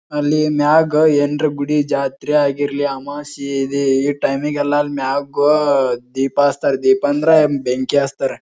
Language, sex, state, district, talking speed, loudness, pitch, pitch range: Kannada, male, Karnataka, Bijapur, 130 wpm, -16 LUFS, 145 Hz, 135-150 Hz